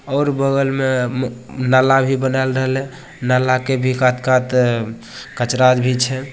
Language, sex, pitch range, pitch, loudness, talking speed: Bhojpuri, male, 125-135 Hz, 130 Hz, -17 LUFS, 150 wpm